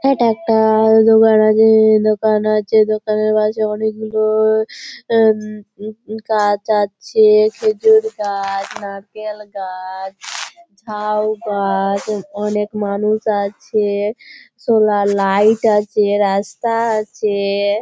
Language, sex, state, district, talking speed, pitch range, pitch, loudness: Bengali, female, West Bengal, Malda, 90 wpm, 205-220 Hz, 215 Hz, -15 LUFS